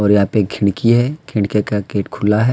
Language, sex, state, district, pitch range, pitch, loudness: Hindi, male, Jharkhand, Deoghar, 100-115 Hz, 105 Hz, -17 LUFS